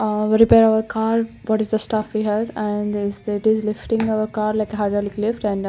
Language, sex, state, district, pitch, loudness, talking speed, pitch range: English, female, Chandigarh, Chandigarh, 215 Hz, -20 LUFS, 230 wpm, 210-220 Hz